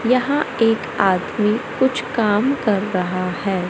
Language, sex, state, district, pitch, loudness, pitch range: Hindi, male, Madhya Pradesh, Katni, 215 Hz, -19 LUFS, 190-250 Hz